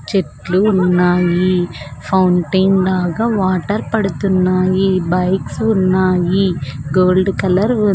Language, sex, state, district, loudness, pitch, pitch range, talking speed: Telugu, female, Andhra Pradesh, Sri Satya Sai, -15 LUFS, 185 Hz, 180-195 Hz, 85 wpm